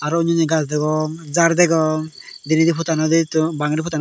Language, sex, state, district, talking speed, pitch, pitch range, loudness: Chakma, male, Tripura, Dhalai, 180 wpm, 160 Hz, 155-165 Hz, -18 LUFS